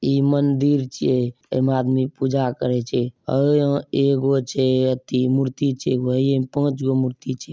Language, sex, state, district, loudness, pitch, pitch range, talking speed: Angika, male, Bihar, Bhagalpur, -21 LUFS, 130 Hz, 130-140 Hz, 145 wpm